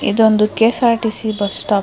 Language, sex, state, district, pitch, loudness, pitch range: Kannada, female, Karnataka, Mysore, 220 Hz, -15 LUFS, 210-225 Hz